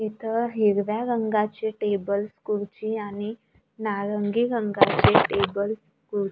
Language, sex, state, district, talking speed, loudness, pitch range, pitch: Marathi, female, Maharashtra, Gondia, 95 wpm, -25 LUFS, 205-220 Hz, 210 Hz